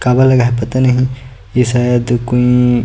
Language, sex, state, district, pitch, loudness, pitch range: Chhattisgarhi, male, Chhattisgarh, Sukma, 125 Hz, -13 LUFS, 120-125 Hz